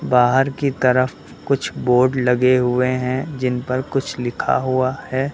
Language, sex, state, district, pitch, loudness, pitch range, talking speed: Hindi, male, Uttar Pradesh, Lucknow, 130 Hz, -19 LUFS, 125-135 Hz, 155 wpm